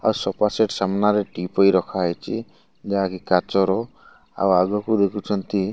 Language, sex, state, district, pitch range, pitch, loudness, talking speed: Odia, male, Odisha, Malkangiri, 95-105 Hz, 100 Hz, -21 LUFS, 125 wpm